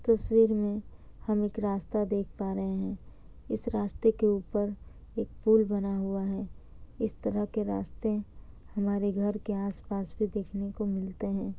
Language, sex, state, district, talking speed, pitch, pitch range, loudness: Hindi, female, Bihar, Kishanganj, 160 wpm, 205 Hz, 200-215 Hz, -31 LUFS